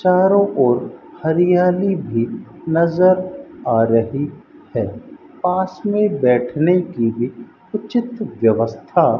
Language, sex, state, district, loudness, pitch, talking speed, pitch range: Hindi, male, Rajasthan, Bikaner, -18 LUFS, 175 Hz, 100 wpm, 120-185 Hz